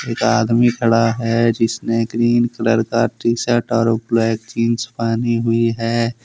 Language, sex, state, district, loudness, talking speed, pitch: Hindi, male, Jharkhand, Deoghar, -17 LUFS, 145 wpm, 115 Hz